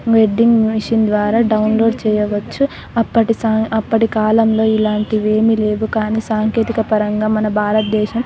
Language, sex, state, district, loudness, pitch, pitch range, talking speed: Telugu, female, Telangana, Nalgonda, -15 LUFS, 220 Hz, 215-225 Hz, 130 wpm